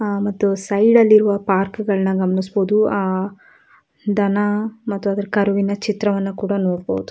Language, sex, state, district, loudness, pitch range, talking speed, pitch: Kannada, female, Karnataka, Dakshina Kannada, -18 LUFS, 195-205 Hz, 135 wpm, 200 Hz